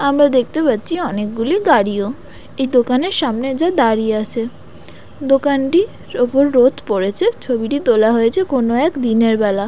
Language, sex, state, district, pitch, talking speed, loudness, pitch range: Bengali, female, West Bengal, Dakshin Dinajpur, 255 Hz, 145 wpm, -16 LUFS, 225-285 Hz